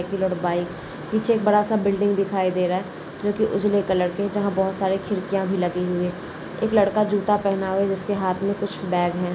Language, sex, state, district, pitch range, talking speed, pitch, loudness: Hindi, female, Maharashtra, Sindhudurg, 180-205 Hz, 220 wpm, 195 Hz, -23 LUFS